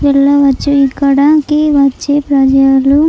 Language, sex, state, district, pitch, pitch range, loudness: Telugu, female, Andhra Pradesh, Chittoor, 280 Hz, 275-290 Hz, -10 LUFS